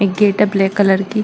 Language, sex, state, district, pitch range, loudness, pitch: Marwari, female, Rajasthan, Nagaur, 195-210 Hz, -15 LUFS, 200 Hz